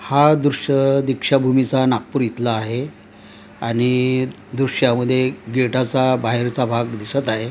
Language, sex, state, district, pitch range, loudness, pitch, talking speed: Marathi, male, Maharashtra, Gondia, 115-135 Hz, -19 LUFS, 130 Hz, 105 wpm